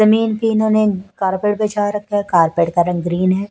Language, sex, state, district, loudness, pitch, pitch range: Hindi, female, Chhattisgarh, Raipur, -17 LUFS, 205 Hz, 180-215 Hz